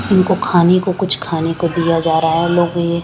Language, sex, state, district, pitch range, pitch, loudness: Hindi, female, Chandigarh, Chandigarh, 165-180 Hz, 170 Hz, -15 LUFS